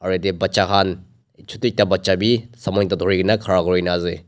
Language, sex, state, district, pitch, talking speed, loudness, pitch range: Nagamese, male, Nagaland, Dimapur, 95 Hz, 195 wpm, -19 LUFS, 90-105 Hz